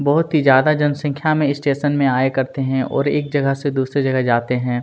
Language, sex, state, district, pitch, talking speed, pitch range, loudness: Hindi, male, Chhattisgarh, Kabirdham, 140 Hz, 225 wpm, 130-145 Hz, -18 LUFS